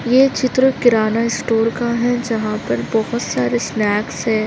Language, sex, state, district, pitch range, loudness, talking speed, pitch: Hindi, female, Maharashtra, Nagpur, 215-245 Hz, -17 LUFS, 160 wpm, 230 Hz